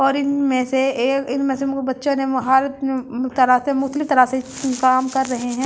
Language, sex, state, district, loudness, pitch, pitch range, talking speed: Hindi, female, Delhi, New Delhi, -19 LUFS, 265 Hz, 255-275 Hz, 245 wpm